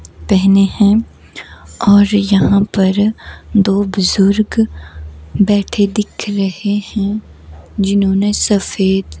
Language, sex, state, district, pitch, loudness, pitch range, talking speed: Hindi, female, Himachal Pradesh, Shimla, 200 Hz, -14 LUFS, 190-205 Hz, 80 wpm